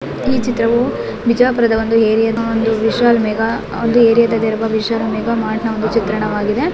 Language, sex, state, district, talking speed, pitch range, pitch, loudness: Kannada, female, Karnataka, Bijapur, 140 wpm, 220-235 Hz, 225 Hz, -15 LUFS